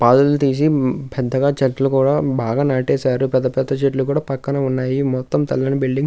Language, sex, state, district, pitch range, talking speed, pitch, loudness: Telugu, male, Andhra Pradesh, Krishna, 130-140 Hz, 170 wpm, 135 Hz, -18 LUFS